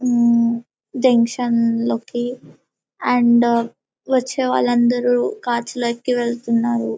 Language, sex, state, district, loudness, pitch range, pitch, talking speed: Telugu, female, Telangana, Karimnagar, -18 LUFS, 235-245 Hz, 240 Hz, 70 wpm